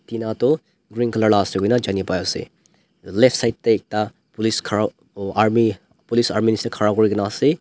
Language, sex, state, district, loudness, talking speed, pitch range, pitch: Nagamese, male, Nagaland, Dimapur, -20 LUFS, 175 wpm, 105-120 Hz, 110 Hz